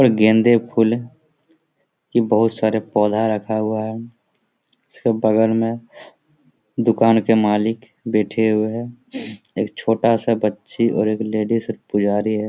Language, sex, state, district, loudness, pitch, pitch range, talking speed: Hindi, male, Jharkhand, Jamtara, -19 LUFS, 115 Hz, 110-115 Hz, 125 wpm